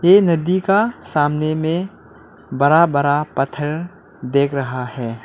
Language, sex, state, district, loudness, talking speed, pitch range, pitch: Hindi, male, Arunachal Pradesh, Lower Dibang Valley, -18 LUFS, 125 wpm, 140-175 Hz, 150 Hz